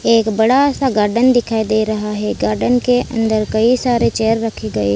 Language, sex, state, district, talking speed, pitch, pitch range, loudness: Hindi, female, Gujarat, Valsad, 195 wpm, 225 Hz, 215-245 Hz, -15 LUFS